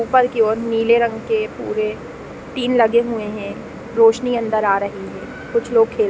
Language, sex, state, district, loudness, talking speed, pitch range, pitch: Hindi, female, Chhattisgarh, Raigarh, -18 LUFS, 195 wpm, 215-245 Hz, 230 Hz